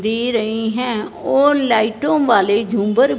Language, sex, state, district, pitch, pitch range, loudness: Hindi, male, Punjab, Fazilka, 230 Hz, 220-265 Hz, -17 LUFS